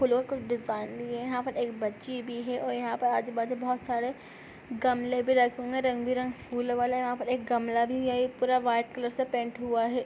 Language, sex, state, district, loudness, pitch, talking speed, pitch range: Hindi, female, Uttar Pradesh, Budaun, -30 LUFS, 245 Hz, 245 wpm, 240-255 Hz